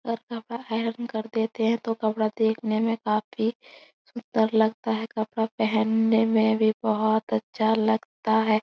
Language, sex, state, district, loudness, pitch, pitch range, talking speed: Hindi, female, Bihar, Supaul, -25 LUFS, 220 Hz, 220-225 Hz, 155 wpm